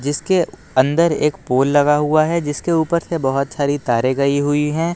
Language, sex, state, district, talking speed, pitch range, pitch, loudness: Hindi, male, Uttar Pradesh, Lucknow, 195 wpm, 140-165 Hz, 150 Hz, -17 LUFS